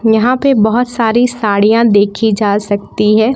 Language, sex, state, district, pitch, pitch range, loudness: Hindi, female, Jharkhand, Palamu, 220 Hz, 210-240 Hz, -12 LUFS